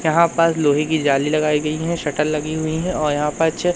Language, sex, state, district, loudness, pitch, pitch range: Hindi, male, Madhya Pradesh, Umaria, -19 LUFS, 155 Hz, 150-165 Hz